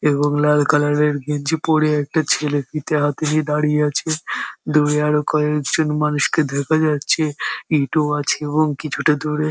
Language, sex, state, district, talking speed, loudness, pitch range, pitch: Bengali, male, West Bengal, Jhargram, 150 wpm, -19 LUFS, 150-155 Hz, 150 Hz